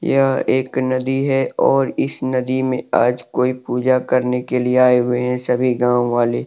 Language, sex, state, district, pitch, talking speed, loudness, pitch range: Hindi, male, Jharkhand, Deoghar, 125 Hz, 185 wpm, -17 LUFS, 125-130 Hz